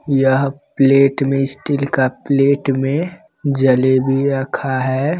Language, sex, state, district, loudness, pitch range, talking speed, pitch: Hindi, male, Bihar, Begusarai, -16 LUFS, 135-140 Hz, 115 wpm, 135 Hz